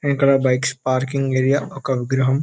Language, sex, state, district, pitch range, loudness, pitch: Telugu, male, Telangana, Nalgonda, 130-140 Hz, -19 LUFS, 135 Hz